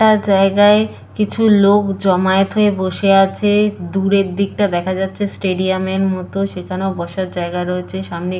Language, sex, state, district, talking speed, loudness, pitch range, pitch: Bengali, female, West Bengal, Purulia, 150 wpm, -16 LUFS, 185-205 Hz, 195 Hz